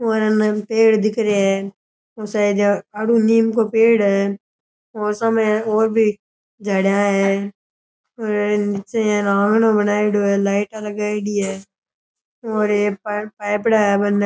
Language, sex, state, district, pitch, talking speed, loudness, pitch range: Rajasthani, male, Rajasthan, Churu, 210 Hz, 120 wpm, -18 LUFS, 205-220 Hz